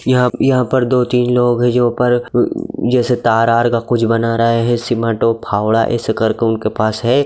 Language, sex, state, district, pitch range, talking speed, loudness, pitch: Magahi, male, Bihar, Gaya, 115-125 Hz, 200 wpm, -15 LUFS, 120 Hz